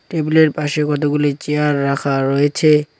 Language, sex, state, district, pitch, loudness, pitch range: Bengali, male, West Bengal, Cooch Behar, 150 Hz, -16 LUFS, 145-150 Hz